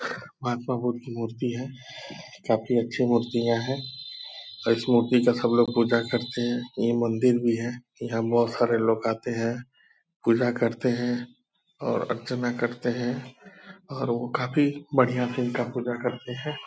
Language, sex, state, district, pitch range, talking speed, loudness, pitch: Hindi, male, Bihar, Purnia, 120-125 Hz, 160 wpm, -26 LUFS, 120 Hz